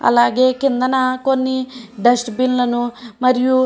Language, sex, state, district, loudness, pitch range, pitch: Telugu, female, Andhra Pradesh, Srikakulam, -17 LUFS, 240-255 Hz, 255 Hz